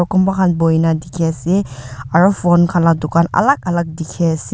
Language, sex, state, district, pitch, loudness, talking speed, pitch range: Nagamese, female, Nagaland, Dimapur, 170 Hz, -15 LUFS, 185 wpm, 160-175 Hz